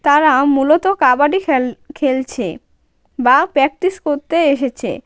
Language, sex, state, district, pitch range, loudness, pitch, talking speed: Bengali, female, West Bengal, Cooch Behar, 270-310 Hz, -15 LUFS, 290 Hz, 95 wpm